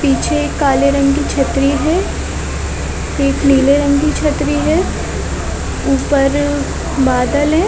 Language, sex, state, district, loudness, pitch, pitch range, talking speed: Hindi, female, Chhattisgarh, Balrampur, -15 LUFS, 280 Hz, 275-290 Hz, 125 wpm